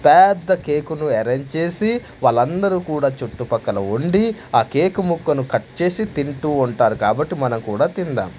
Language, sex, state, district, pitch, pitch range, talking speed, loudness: Telugu, male, Andhra Pradesh, Manyam, 150 Hz, 125-185 Hz, 145 wpm, -19 LUFS